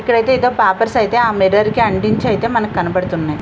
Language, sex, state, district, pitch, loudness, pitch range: Telugu, female, Andhra Pradesh, Visakhapatnam, 215 Hz, -15 LUFS, 190-230 Hz